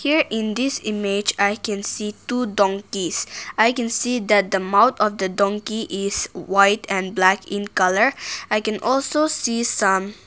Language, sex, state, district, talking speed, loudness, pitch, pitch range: English, female, Nagaland, Kohima, 170 wpm, -20 LUFS, 210 Hz, 200-230 Hz